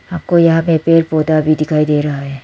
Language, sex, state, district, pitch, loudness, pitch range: Hindi, female, Arunachal Pradesh, Lower Dibang Valley, 155 Hz, -13 LUFS, 150-165 Hz